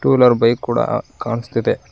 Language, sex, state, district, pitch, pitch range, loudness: Kannada, male, Karnataka, Koppal, 120 Hz, 115-120 Hz, -17 LUFS